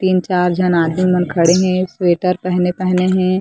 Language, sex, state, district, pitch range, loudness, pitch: Chhattisgarhi, female, Chhattisgarh, Korba, 180-185 Hz, -15 LUFS, 180 Hz